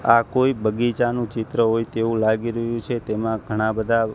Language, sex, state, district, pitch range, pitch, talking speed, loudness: Gujarati, male, Gujarat, Gandhinagar, 110-115 Hz, 115 Hz, 175 wpm, -22 LUFS